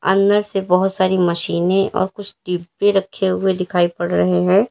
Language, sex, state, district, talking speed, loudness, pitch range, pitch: Hindi, female, Uttar Pradesh, Lalitpur, 180 wpm, -18 LUFS, 175-195 Hz, 185 Hz